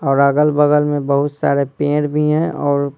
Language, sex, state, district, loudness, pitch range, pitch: Hindi, male, Bihar, Patna, -16 LUFS, 140-150 Hz, 145 Hz